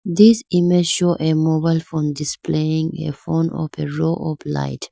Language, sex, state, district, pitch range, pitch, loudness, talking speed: English, female, Arunachal Pradesh, Lower Dibang Valley, 155-175 Hz, 160 Hz, -19 LUFS, 170 wpm